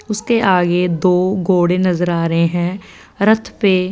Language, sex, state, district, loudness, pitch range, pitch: Hindi, female, Punjab, Fazilka, -15 LUFS, 175-200 Hz, 185 Hz